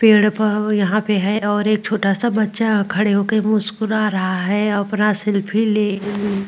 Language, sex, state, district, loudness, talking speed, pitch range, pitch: Hindi, female, Uttar Pradesh, Muzaffarnagar, -18 LUFS, 175 wpm, 205-215 Hz, 210 Hz